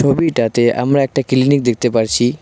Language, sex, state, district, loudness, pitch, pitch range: Bengali, male, West Bengal, Cooch Behar, -15 LUFS, 125 Hz, 120-140 Hz